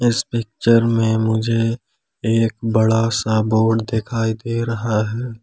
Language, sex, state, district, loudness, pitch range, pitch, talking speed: Hindi, male, Jharkhand, Palamu, -19 LUFS, 110-115 Hz, 115 Hz, 135 wpm